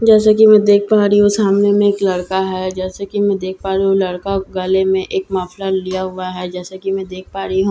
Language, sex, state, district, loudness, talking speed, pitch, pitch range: Hindi, female, Bihar, Katihar, -15 LUFS, 280 wpm, 190 Hz, 185-205 Hz